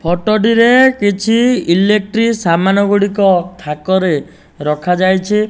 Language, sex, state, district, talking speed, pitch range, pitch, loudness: Odia, male, Odisha, Nuapada, 85 wpm, 180-215 Hz, 200 Hz, -13 LUFS